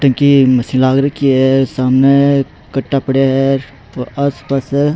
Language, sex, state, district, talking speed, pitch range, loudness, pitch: Rajasthani, male, Rajasthan, Churu, 155 wpm, 130-140 Hz, -13 LUFS, 135 Hz